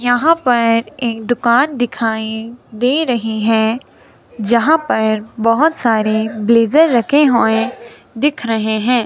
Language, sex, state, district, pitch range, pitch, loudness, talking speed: Hindi, male, Himachal Pradesh, Shimla, 220-250 Hz, 235 Hz, -15 LUFS, 120 wpm